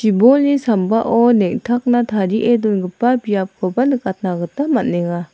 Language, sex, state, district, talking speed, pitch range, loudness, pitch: Garo, female, Meghalaya, South Garo Hills, 90 wpm, 190-245 Hz, -16 LUFS, 225 Hz